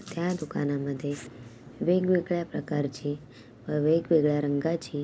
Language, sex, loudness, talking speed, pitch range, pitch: Marathi, female, -28 LUFS, 120 wpm, 140-165 Hz, 145 Hz